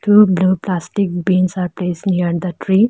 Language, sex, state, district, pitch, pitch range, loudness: English, female, Arunachal Pradesh, Lower Dibang Valley, 185 Hz, 180-195 Hz, -16 LUFS